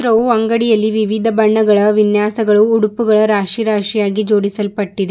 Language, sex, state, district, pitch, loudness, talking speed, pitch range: Kannada, female, Karnataka, Bidar, 215 Hz, -14 LUFS, 115 wpm, 210-220 Hz